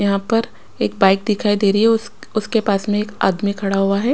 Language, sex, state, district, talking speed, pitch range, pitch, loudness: Hindi, female, Maharashtra, Washim, 245 wpm, 200-220 Hz, 205 Hz, -18 LUFS